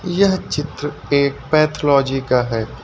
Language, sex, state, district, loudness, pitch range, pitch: Hindi, male, Uttar Pradesh, Lucknow, -18 LUFS, 135-155 Hz, 140 Hz